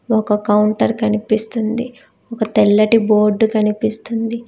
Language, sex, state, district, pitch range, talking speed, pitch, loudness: Telugu, female, Telangana, Hyderabad, 210-230 Hz, 95 wpm, 220 Hz, -16 LUFS